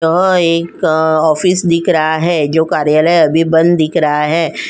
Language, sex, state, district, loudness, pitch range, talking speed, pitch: Hindi, female, Uttar Pradesh, Jyotiba Phule Nagar, -12 LUFS, 155-170 Hz, 165 wpm, 160 Hz